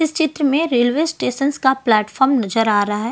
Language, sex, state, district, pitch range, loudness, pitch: Hindi, female, Delhi, New Delhi, 225-295 Hz, -17 LUFS, 265 Hz